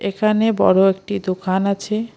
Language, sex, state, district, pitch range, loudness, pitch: Bengali, female, West Bengal, Alipurduar, 190-215 Hz, -18 LUFS, 200 Hz